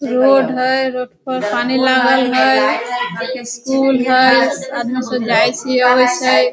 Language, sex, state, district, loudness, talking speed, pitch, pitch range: Hindi, female, Bihar, Sitamarhi, -14 LUFS, 140 wpm, 250 Hz, 240-260 Hz